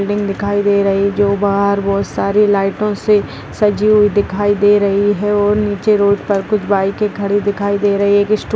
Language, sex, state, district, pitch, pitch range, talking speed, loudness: Hindi, female, Bihar, Muzaffarpur, 205 Hz, 200-205 Hz, 215 wpm, -14 LUFS